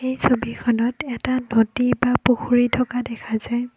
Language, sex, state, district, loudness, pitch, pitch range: Assamese, female, Assam, Kamrup Metropolitan, -21 LUFS, 245 Hz, 235-250 Hz